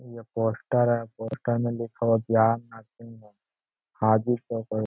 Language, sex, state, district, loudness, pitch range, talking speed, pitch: Hindi, male, Bihar, Araria, -26 LUFS, 110-120 Hz, 135 wpm, 115 Hz